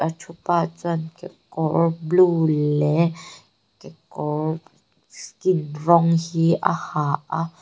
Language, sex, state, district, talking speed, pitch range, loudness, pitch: Mizo, female, Mizoram, Aizawl, 100 wpm, 160-170 Hz, -21 LUFS, 165 Hz